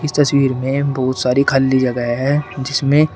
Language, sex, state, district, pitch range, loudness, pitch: Hindi, male, Uttar Pradesh, Shamli, 130-140 Hz, -16 LUFS, 135 Hz